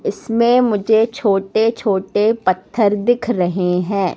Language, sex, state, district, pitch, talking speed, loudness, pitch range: Hindi, female, Madhya Pradesh, Katni, 210 Hz, 115 wpm, -16 LUFS, 195-230 Hz